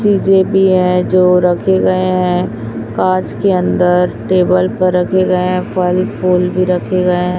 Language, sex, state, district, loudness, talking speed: Hindi, female, Chhattisgarh, Raipur, -13 LUFS, 160 wpm